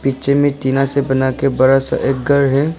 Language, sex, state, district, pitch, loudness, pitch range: Hindi, male, Arunachal Pradesh, Lower Dibang Valley, 135 Hz, -15 LUFS, 135-140 Hz